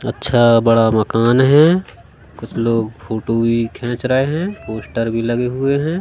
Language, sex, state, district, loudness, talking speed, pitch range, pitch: Hindi, male, Madhya Pradesh, Katni, -16 LUFS, 160 wpm, 115-135 Hz, 120 Hz